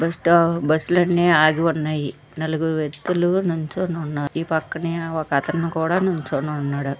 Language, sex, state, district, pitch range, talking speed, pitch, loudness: Telugu, female, Andhra Pradesh, Visakhapatnam, 150-170 Hz, 110 wpm, 160 Hz, -21 LUFS